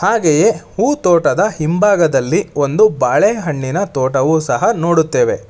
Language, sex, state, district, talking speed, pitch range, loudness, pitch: Kannada, male, Karnataka, Bangalore, 100 wpm, 145-205 Hz, -14 LUFS, 170 Hz